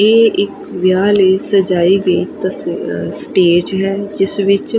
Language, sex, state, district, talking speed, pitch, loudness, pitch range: Punjabi, female, Punjab, Kapurthala, 125 wpm, 195 Hz, -14 LUFS, 185-200 Hz